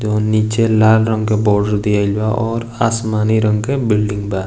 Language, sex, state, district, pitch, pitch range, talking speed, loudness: Bhojpuri, male, Bihar, East Champaran, 110 Hz, 105-110 Hz, 190 wpm, -15 LUFS